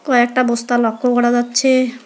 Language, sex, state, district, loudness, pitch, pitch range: Bengali, female, West Bengal, Alipurduar, -15 LUFS, 245 Hz, 240-255 Hz